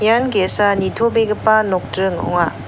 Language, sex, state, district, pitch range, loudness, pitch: Garo, female, Meghalaya, North Garo Hills, 190-220 Hz, -16 LUFS, 210 Hz